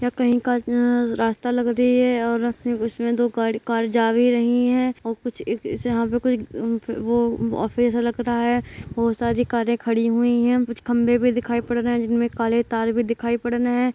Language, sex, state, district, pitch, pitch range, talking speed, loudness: Hindi, male, Bihar, Purnia, 235 Hz, 230-245 Hz, 180 wpm, -21 LUFS